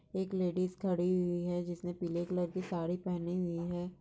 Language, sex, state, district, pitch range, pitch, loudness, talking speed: Hindi, female, Maharashtra, Nagpur, 175-185 Hz, 175 Hz, -36 LUFS, 195 wpm